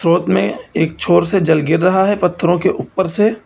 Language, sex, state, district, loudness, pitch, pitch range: Hindi, male, Uttar Pradesh, Lucknow, -15 LUFS, 180 Hz, 170-190 Hz